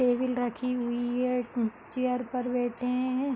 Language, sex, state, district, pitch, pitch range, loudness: Hindi, female, Uttar Pradesh, Hamirpur, 250 Hz, 245-250 Hz, -30 LUFS